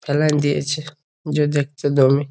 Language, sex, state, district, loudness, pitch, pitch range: Bengali, male, West Bengal, Jalpaiguri, -19 LUFS, 145 Hz, 145-150 Hz